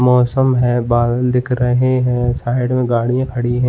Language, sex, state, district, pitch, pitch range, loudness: Hindi, male, Uttarakhand, Uttarkashi, 125 Hz, 120-125 Hz, -16 LUFS